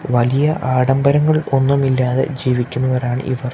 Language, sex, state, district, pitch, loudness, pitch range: Malayalam, male, Kerala, Kasaragod, 130 Hz, -16 LUFS, 125-140 Hz